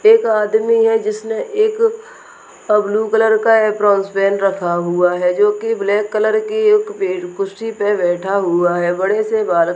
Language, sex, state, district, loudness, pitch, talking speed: Hindi, male, Rajasthan, Nagaur, -16 LUFS, 215 Hz, 150 wpm